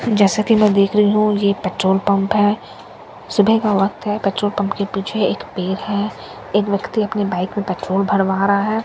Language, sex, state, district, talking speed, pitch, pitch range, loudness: Hindi, female, Bihar, Katihar, 205 wpm, 200 Hz, 195-210 Hz, -18 LUFS